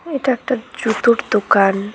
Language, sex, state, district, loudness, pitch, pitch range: Bengali, female, West Bengal, Cooch Behar, -17 LUFS, 235 Hz, 215-260 Hz